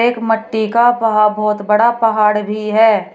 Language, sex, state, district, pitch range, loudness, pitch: Hindi, female, Uttar Pradesh, Shamli, 210-225 Hz, -14 LUFS, 220 Hz